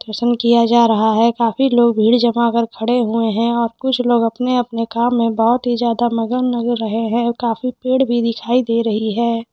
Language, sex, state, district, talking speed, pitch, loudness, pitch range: Hindi, female, Bihar, Purnia, 200 wpm, 235 Hz, -16 LUFS, 230-240 Hz